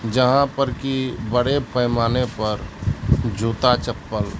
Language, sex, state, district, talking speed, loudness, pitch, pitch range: Hindi, male, Bihar, Katihar, 95 wpm, -21 LUFS, 125 Hz, 110-130 Hz